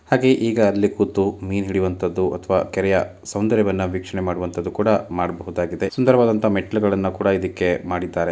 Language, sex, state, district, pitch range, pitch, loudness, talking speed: Kannada, male, Karnataka, Mysore, 90-105 Hz, 95 Hz, -20 LUFS, 130 wpm